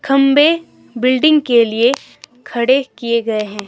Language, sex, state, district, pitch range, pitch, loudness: Hindi, female, Himachal Pradesh, Shimla, 235-285 Hz, 255 Hz, -14 LUFS